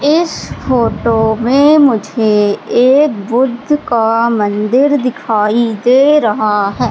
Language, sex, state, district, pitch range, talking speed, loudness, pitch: Hindi, female, Madhya Pradesh, Katni, 220-275 Hz, 105 wpm, -12 LUFS, 235 Hz